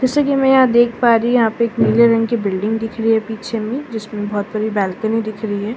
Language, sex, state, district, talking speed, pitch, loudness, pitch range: Hindi, female, Delhi, New Delhi, 280 wpm, 225 Hz, -17 LUFS, 215-235 Hz